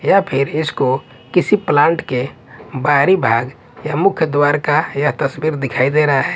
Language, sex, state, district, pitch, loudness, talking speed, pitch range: Hindi, male, Punjab, Kapurthala, 145 Hz, -16 LUFS, 170 wpm, 135-160 Hz